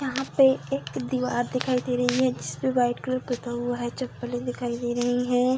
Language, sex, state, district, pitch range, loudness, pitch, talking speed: Hindi, female, Bihar, Darbhanga, 245-255 Hz, -26 LUFS, 245 Hz, 205 wpm